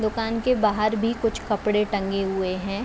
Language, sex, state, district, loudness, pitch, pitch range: Hindi, female, Uttar Pradesh, Jalaun, -24 LUFS, 215 Hz, 195-225 Hz